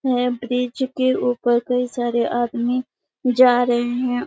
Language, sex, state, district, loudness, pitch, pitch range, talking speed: Hindi, female, Chhattisgarh, Bastar, -20 LUFS, 245 Hz, 240-250 Hz, 155 wpm